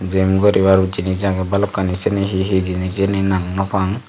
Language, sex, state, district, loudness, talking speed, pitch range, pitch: Chakma, male, Tripura, Dhalai, -17 LUFS, 160 wpm, 95-100 Hz, 95 Hz